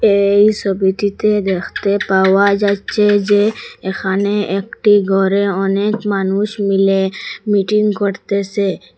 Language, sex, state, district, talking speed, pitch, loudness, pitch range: Bengali, female, Assam, Hailakandi, 95 wpm, 200 Hz, -15 LUFS, 195-205 Hz